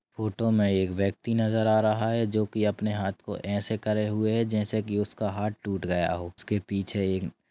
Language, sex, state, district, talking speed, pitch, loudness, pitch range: Hindi, male, Chhattisgarh, Raigarh, 215 wpm, 105 Hz, -28 LUFS, 100-110 Hz